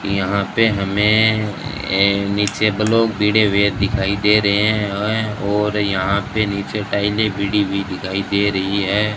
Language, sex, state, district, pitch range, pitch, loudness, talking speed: Hindi, male, Rajasthan, Bikaner, 100-105 Hz, 100 Hz, -17 LUFS, 150 wpm